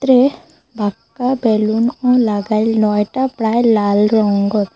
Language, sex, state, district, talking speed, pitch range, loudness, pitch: Bengali, female, Assam, Hailakandi, 75 wpm, 210-250 Hz, -15 LUFS, 220 Hz